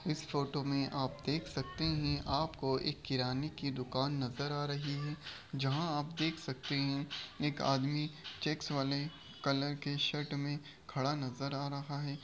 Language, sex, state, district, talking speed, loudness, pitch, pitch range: Hindi, male, Bihar, Begusarai, 165 wpm, -37 LUFS, 145 Hz, 140-150 Hz